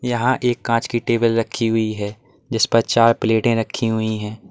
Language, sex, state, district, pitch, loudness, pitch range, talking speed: Hindi, male, Uttar Pradesh, Lalitpur, 115 Hz, -19 LUFS, 110-120 Hz, 200 wpm